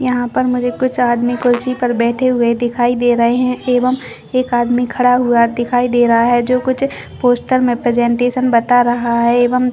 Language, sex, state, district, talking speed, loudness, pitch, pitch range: Hindi, female, Chhattisgarh, Bastar, 190 wpm, -14 LUFS, 245 Hz, 240-250 Hz